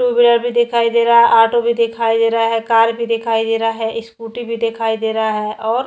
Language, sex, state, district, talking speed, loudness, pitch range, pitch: Hindi, female, Chhattisgarh, Kabirdham, 265 wpm, -15 LUFS, 225-235 Hz, 230 Hz